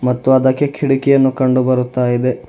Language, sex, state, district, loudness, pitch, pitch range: Kannada, male, Karnataka, Bidar, -14 LUFS, 130 Hz, 125-135 Hz